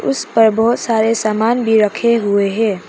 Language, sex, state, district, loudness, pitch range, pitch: Hindi, female, Arunachal Pradesh, Papum Pare, -14 LUFS, 210-230 Hz, 220 Hz